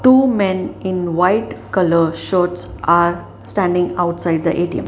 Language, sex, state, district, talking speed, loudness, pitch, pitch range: English, female, Maharashtra, Mumbai Suburban, 135 wpm, -17 LUFS, 180 Hz, 170-190 Hz